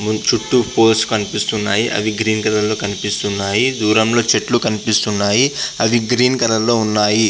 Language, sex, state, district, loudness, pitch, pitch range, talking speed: Telugu, male, Andhra Pradesh, Visakhapatnam, -16 LUFS, 110 Hz, 105-115 Hz, 140 wpm